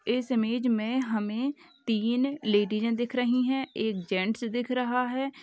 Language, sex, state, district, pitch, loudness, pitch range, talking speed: Hindi, female, Uttar Pradesh, Hamirpur, 240 Hz, -28 LUFS, 220-255 Hz, 155 wpm